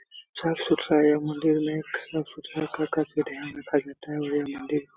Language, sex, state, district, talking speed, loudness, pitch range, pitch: Hindi, male, Bihar, Supaul, 135 wpm, -27 LUFS, 145-155 Hz, 150 Hz